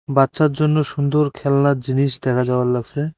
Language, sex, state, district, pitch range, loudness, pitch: Bengali, male, West Bengal, Cooch Behar, 130-150 Hz, -18 LUFS, 140 Hz